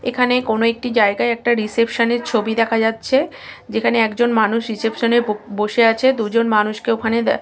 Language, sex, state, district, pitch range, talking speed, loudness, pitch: Bengali, female, West Bengal, Kolkata, 220-240 Hz, 170 wpm, -17 LUFS, 230 Hz